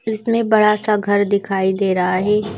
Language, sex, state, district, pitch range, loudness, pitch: Hindi, female, Madhya Pradesh, Bhopal, 195-215 Hz, -17 LUFS, 205 Hz